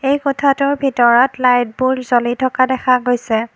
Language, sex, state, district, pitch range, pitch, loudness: Assamese, female, Assam, Kamrup Metropolitan, 245-275 Hz, 255 Hz, -15 LUFS